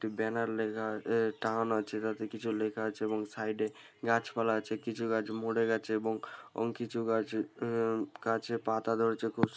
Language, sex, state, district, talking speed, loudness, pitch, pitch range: Bengali, male, West Bengal, Purulia, 195 wpm, -34 LUFS, 110 Hz, 110-115 Hz